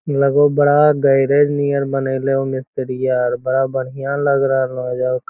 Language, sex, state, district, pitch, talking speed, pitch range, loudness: Hindi, male, Bihar, Lakhisarai, 135 Hz, 135 wpm, 130-140 Hz, -17 LUFS